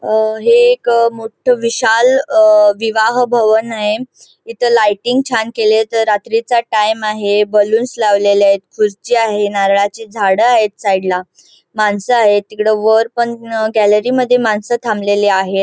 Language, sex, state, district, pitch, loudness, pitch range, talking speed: Marathi, female, Goa, North and South Goa, 220 Hz, -13 LUFS, 210-240 Hz, 140 wpm